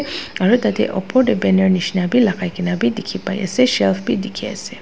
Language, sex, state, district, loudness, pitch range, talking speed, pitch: Nagamese, female, Nagaland, Dimapur, -18 LUFS, 185-240 Hz, 235 wpm, 195 Hz